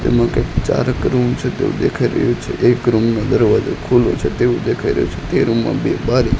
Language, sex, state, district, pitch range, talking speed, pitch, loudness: Gujarati, male, Gujarat, Gandhinagar, 115-120 Hz, 225 wpm, 115 Hz, -16 LUFS